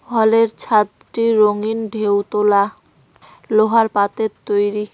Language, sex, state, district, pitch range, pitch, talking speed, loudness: Bengali, female, West Bengal, Cooch Behar, 205-225 Hz, 215 Hz, 95 wpm, -17 LUFS